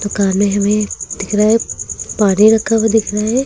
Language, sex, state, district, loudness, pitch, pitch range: Hindi, female, Uttar Pradesh, Lucknow, -14 LUFS, 210 Hz, 205-220 Hz